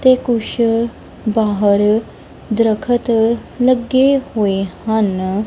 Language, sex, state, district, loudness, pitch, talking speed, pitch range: Punjabi, female, Punjab, Kapurthala, -16 LUFS, 225 Hz, 75 wpm, 210-245 Hz